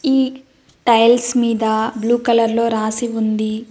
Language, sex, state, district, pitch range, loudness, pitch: Telugu, female, Telangana, Mahabubabad, 220-240 Hz, -17 LUFS, 230 Hz